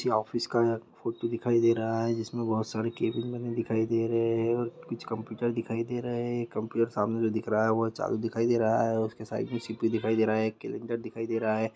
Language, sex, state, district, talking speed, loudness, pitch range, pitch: Hindi, male, Bihar, East Champaran, 270 wpm, -29 LUFS, 110-115 Hz, 115 Hz